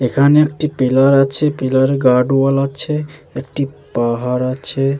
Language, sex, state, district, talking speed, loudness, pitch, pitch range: Bengali, male, West Bengal, Jalpaiguri, 155 wpm, -15 LUFS, 135 Hz, 130-140 Hz